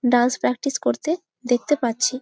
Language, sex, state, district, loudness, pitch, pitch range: Bengali, female, West Bengal, Jalpaiguri, -22 LUFS, 250 Hz, 245-290 Hz